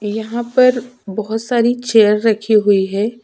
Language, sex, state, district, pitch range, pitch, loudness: Hindi, female, Chhattisgarh, Sukma, 210-240 Hz, 225 Hz, -15 LUFS